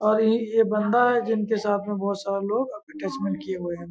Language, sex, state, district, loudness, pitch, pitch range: Hindi, male, Bihar, Kishanganj, -24 LUFS, 210 Hz, 195-225 Hz